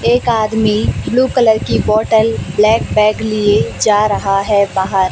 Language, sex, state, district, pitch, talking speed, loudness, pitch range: Hindi, female, Chhattisgarh, Raipur, 215 Hz, 150 wpm, -13 LUFS, 205-220 Hz